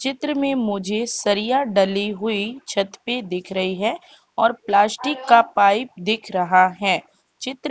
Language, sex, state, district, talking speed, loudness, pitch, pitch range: Hindi, female, Madhya Pradesh, Katni, 155 wpm, -20 LUFS, 215 Hz, 200-255 Hz